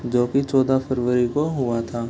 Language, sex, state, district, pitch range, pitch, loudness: Hindi, male, Bihar, Gopalganj, 120-135 Hz, 125 Hz, -21 LUFS